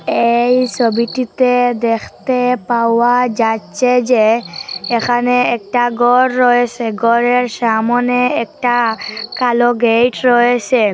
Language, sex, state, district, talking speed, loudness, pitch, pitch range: Bengali, female, Assam, Hailakandi, 90 wpm, -14 LUFS, 240 Hz, 230-245 Hz